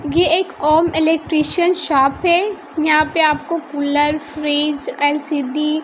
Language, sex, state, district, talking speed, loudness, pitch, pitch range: Hindi, female, Bihar, West Champaran, 135 wpm, -16 LUFS, 305 Hz, 295-330 Hz